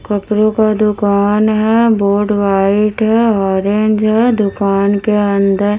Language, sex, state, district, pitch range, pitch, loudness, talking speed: Hindi, female, Himachal Pradesh, Shimla, 200-215 Hz, 210 Hz, -13 LUFS, 125 wpm